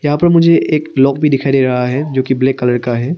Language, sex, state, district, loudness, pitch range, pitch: Hindi, male, Arunachal Pradesh, Papum Pare, -13 LUFS, 130-150 Hz, 135 Hz